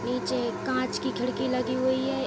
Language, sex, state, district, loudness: Hindi, female, Uttar Pradesh, Ghazipur, -28 LUFS